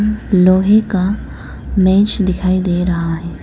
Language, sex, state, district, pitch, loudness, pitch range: Hindi, female, Arunachal Pradesh, Lower Dibang Valley, 185 Hz, -14 LUFS, 180-200 Hz